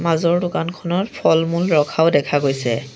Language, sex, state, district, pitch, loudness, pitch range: Assamese, male, Assam, Sonitpur, 165 Hz, -18 LUFS, 145-175 Hz